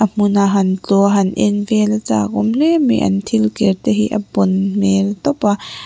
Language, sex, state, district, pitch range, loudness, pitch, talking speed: Mizo, female, Mizoram, Aizawl, 195-215 Hz, -15 LUFS, 205 Hz, 205 wpm